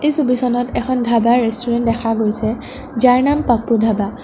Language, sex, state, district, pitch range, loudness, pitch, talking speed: Assamese, female, Assam, Sonitpur, 225-250 Hz, -16 LUFS, 240 Hz, 170 wpm